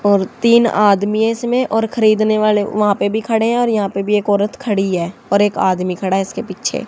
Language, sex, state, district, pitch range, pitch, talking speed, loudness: Hindi, female, Haryana, Charkhi Dadri, 200-225 Hz, 210 Hz, 225 wpm, -16 LUFS